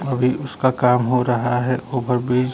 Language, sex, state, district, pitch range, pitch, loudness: Hindi, male, Bihar, Kaimur, 125-130 Hz, 125 Hz, -19 LUFS